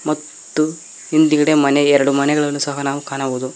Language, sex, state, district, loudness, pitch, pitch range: Kannada, male, Karnataka, Koppal, -17 LUFS, 145 Hz, 140-155 Hz